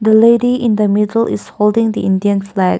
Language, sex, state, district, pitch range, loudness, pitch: English, female, Nagaland, Kohima, 205-225 Hz, -13 LUFS, 215 Hz